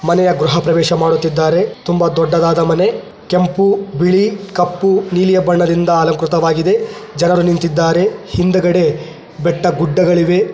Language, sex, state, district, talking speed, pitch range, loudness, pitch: Kannada, male, Karnataka, Chamarajanagar, 95 wpm, 165-180 Hz, -14 LUFS, 175 Hz